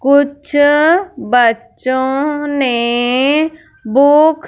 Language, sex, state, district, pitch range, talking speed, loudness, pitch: Hindi, female, Punjab, Fazilka, 250-295 Hz, 65 wpm, -13 LUFS, 280 Hz